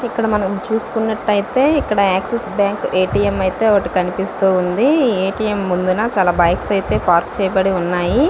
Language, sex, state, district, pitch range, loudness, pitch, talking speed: Telugu, female, Andhra Pradesh, Visakhapatnam, 185-220 Hz, -16 LUFS, 200 Hz, 165 wpm